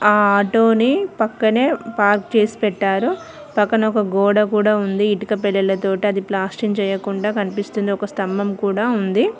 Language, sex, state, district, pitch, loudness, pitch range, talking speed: Telugu, female, Telangana, Mahabubabad, 210 Hz, -18 LUFS, 200-220 Hz, 145 wpm